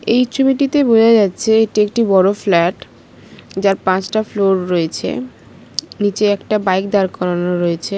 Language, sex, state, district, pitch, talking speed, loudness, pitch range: Bengali, female, West Bengal, Paschim Medinipur, 200 Hz, 135 wpm, -15 LUFS, 185-220 Hz